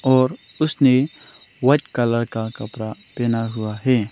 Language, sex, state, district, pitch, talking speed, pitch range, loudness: Hindi, male, Arunachal Pradesh, Longding, 125 Hz, 130 wpm, 110-135 Hz, -21 LUFS